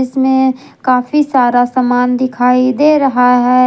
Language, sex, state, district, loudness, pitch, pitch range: Hindi, female, Jharkhand, Garhwa, -12 LUFS, 255 Hz, 250-265 Hz